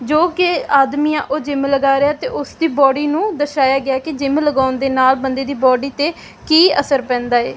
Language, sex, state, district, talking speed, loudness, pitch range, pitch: Punjabi, female, Punjab, Fazilka, 215 wpm, -16 LUFS, 270-300 Hz, 280 Hz